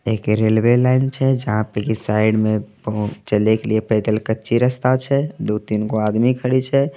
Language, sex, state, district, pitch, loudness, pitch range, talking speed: Angika, male, Bihar, Begusarai, 110 Hz, -18 LUFS, 110-130 Hz, 190 wpm